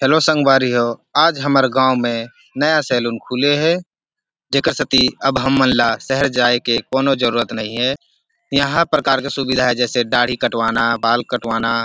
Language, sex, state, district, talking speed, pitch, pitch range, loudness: Chhattisgarhi, male, Chhattisgarh, Rajnandgaon, 180 wpm, 130 Hz, 120-140 Hz, -16 LUFS